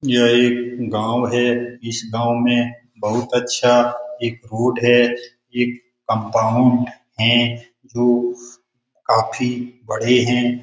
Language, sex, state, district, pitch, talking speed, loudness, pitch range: Hindi, male, Bihar, Lakhisarai, 120 Hz, 115 wpm, -18 LUFS, 120-125 Hz